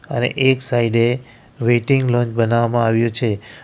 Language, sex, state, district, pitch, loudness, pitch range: Gujarati, male, Gujarat, Valsad, 120 Hz, -18 LUFS, 115-125 Hz